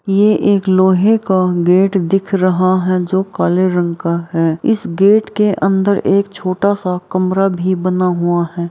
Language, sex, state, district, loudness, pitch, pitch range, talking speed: Hindi, female, Bihar, Araria, -14 LUFS, 185 Hz, 180-195 Hz, 165 wpm